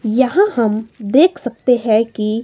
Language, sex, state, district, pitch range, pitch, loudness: Hindi, female, Himachal Pradesh, Shimla, 220-260 Hz, 230 Hz, -15 LUFS